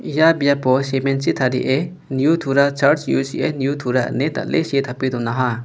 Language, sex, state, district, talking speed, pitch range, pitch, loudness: Garo, male, Meghalaya, West Garo Hills, 170 wpm, 130-140 Hz, 135 Hz, -19 LUFS